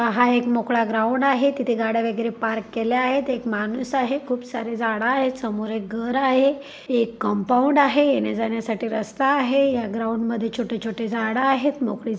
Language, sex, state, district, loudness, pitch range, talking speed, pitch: Marathi, female, Maharashtra, Dhule, -22 LUFS, 225-265 Hz, 175 wpm, 235 Hz